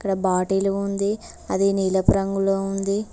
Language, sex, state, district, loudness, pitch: Telugu, female, Telangana, Mahabubabad, -22 LUFS, 195 Hz